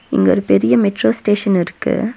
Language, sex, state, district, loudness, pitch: Tamil, female, Tamil Nadu, Nilgiris, -15 LUFS, 185 Hz